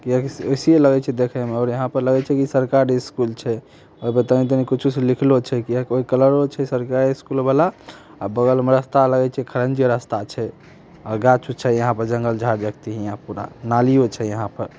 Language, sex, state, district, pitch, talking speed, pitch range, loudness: Maithili, male, Bihar, Samastipur, 130 Hz, 70 wpm, 120-135 Hz, -19 LUFS